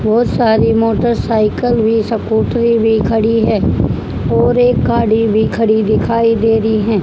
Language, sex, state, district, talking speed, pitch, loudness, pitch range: Hindi, female, Haryana, Charkhi Dadri, 145 wpm, 225 Hz, -13 LUFS, 220-230 Hz